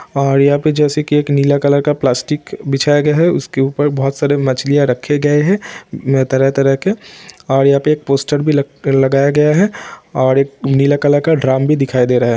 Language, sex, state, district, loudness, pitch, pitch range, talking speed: Hindi, male, Bihar, Vaishali, -14 LUFS, 140 Hz, 135-150 Hz, 210 wpm